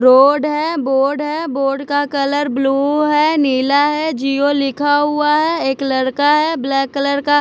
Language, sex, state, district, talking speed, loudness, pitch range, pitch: Hindi, female, Chhattisgarh, Raipur, 170 wpm, -15 LUFS, 275-295 Hz, 285 Hz